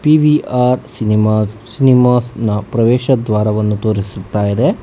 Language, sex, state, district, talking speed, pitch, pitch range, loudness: Kannada, male, Karnataka, Bangalore, 100 wpm, 115 Hz, 105-125 Hz, -14 LUFS